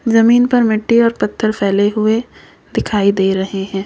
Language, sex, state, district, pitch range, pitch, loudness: Hindi, female, Uttar Pradesh, Lalitpur, 195-230 Hz, 215 Hz, -14 LUFS